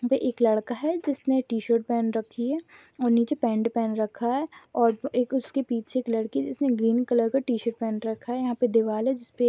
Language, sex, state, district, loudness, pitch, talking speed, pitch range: Hindi, female, Rajasthan, Nagaur, -26 LUFS, 240 Hz, 245 wpm, 225-260 Hz